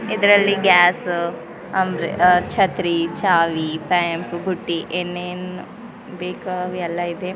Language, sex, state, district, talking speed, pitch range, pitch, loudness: Kannada, female, Karnataka, Bidar, 90 wpm, 170-185 Hz, 180 Hz, -19 LUFS